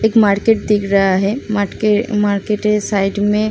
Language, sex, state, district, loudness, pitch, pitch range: Hindi, female, Uttar Pradesh, Muzaffarnagar, -15 LUFS, 210 Hz, 200-215 Hz